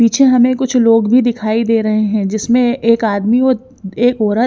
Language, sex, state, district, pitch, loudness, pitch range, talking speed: Hindi, female, Chandigarh, Chandigarh, 230 Hz, -13 LUFS, 215-245 Hz, 200 wpm